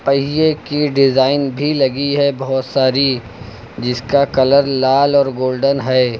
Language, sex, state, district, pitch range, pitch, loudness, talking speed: Hindi, male, Uttar Pradesh, Lucknow, 130-140 Hz, 135 Hz, -15 LUFS, 135 wpm